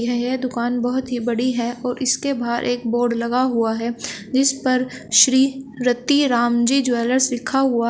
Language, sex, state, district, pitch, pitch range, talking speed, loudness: Hindi, female, Uttar Pradesh, Shamli, 245 Hz, 235-260 Hz, 165 wpm, -19 LUFS